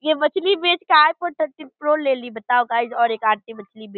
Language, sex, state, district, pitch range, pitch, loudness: Hindi, female, Bihar, Purnia, 230-310 Hz, 270 Hz, -19 LUFS